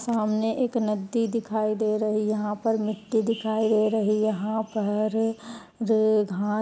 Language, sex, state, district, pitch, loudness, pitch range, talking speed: Hindi, female, Uttar Pradesh, Etah, 215 Hz, -25 LUFS, 215-225 Hz, 155 wpm